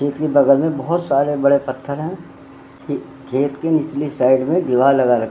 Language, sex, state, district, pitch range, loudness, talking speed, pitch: Hindi, male, Uttarakhand, Tehri Garhwal, 135-155 Hz, -17 LUFS, 205 wpm, 140 Hz